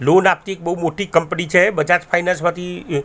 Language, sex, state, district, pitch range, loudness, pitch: Gujarati, male, Gujarat, Gandhinagar, 170-180 Hz, -17 LUFS, 175 Hz